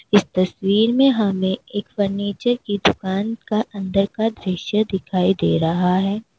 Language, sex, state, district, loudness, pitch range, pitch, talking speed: Hindi, female, Uttar Pradesh, Lalitpur, -20 LUFS, 190-215 Hz, 200 Hz, 150 wpm